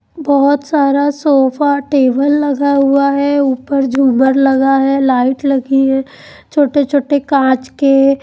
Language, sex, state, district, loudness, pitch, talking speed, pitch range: Hindi, female, Chandigarh, Chandigarh, -12 LUFS, 275 Hz, 130 wpm, 270-285 Hz